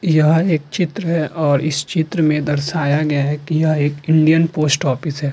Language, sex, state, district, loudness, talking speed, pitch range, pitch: Hindi, female, Uttar Pradesh, Hamirpur, -17 LUFS, 200 wpm, 145-160 Hz, 155 Hz